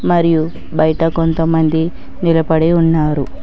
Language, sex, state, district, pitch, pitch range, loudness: Telugu, female, Telangana, Hyderabad, 160 Hz, 160-165 Hz, -15 LUFS